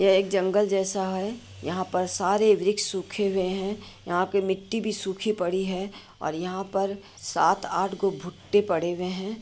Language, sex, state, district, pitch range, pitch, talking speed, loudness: Hindi, female, Bihar, Madhepura, 185-200 Hz, 195 Hz, 170 wpm, -26 LUFS